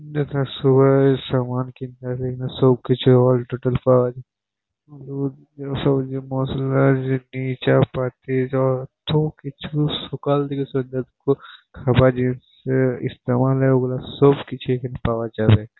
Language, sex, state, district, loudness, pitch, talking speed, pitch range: Bengali, male, West Bengal, Purulia, -20 LUFS, 130 Hz, 90 wpm, 125-135 Hz